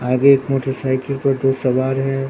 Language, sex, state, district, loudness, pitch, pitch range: Hindi, male, Bihar, Katihar, -18 LUFS, 135 Hz, 130-135 Hz